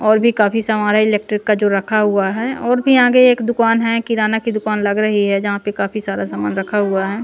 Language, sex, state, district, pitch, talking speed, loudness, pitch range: Hindi, female, Punjab, Pathankot, 215 Hz, 255 wpm, -16 LUFS, 205-230 Hz